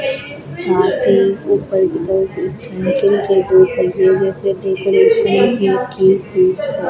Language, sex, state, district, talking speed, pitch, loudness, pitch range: Hindi, female, Rajasthan, Bikaner, 130 wpm, 195 Hz, -14 LUFS, 190-275 Hz